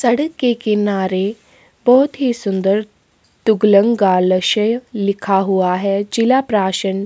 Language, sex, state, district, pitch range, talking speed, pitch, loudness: Hindi, female, Chhattisgarh, Sukma, 195-235 Hz, 110 wpm, 205 Hz, -16 LUFS